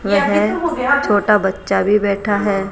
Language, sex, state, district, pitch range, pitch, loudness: Hindi, female, Rajasthan, Jaipur, 200-210 Hz, 205 Hz, -16 LUFS